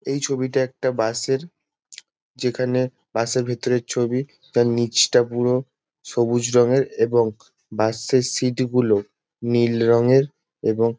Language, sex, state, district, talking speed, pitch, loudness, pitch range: Bengali, male, West Bengal, Jalpaiguri, 105 wpm, 125 Hz, -21 LUFS, 115-130 Hz